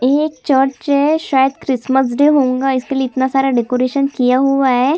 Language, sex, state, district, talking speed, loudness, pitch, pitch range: Hindi, female, Chhattisgarh, Sukma, 190 wpm, -15 LUFS, 265 Hz, 260-280 Hz